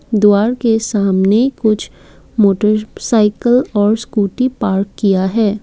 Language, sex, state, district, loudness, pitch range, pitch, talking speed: Hindi, female, Assam, Kamrup Metropolitan, -14 LUFS, 205-230 Hz, 215 Hz, 105 wpm